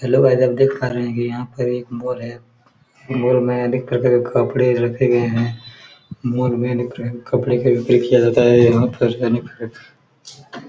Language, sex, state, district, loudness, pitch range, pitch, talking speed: Hindi, male, Chhattisgarh, Korba, -18 LUFS, 120-125 Hz, 125 Hz, 190 wpm